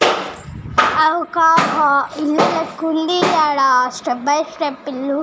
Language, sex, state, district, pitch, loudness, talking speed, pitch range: Telugu, female, Telangana, Nalgonda, 305 Hz, -16 LUFS, 115 wpm, 280-320 Hz